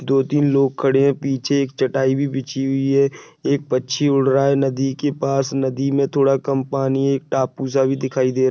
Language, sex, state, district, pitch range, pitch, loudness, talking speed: Hindi, male, Maharashtra, Dhule, 135-140 Hz, 135 Hz, -19 LUFS, 220 wpm